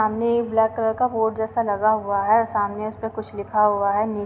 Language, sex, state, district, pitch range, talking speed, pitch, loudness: Hindi, female, Uttar Pradesh, Varanasi, 210-225 Hz, 255 wpm, 220 Hz, -22 LUFS